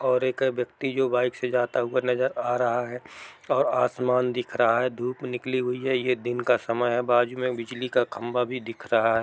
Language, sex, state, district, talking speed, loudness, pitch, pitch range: Hindi, male, Bihar, East Champaran, 225 wpm, -25 LUFS, 125 Hz, 120-125 Hz